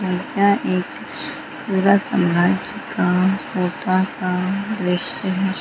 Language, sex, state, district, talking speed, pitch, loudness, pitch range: Hindi, female, Bihar, Gaya, 95 wpm, 185 Hz, -20 LUFS, 180-195 Hz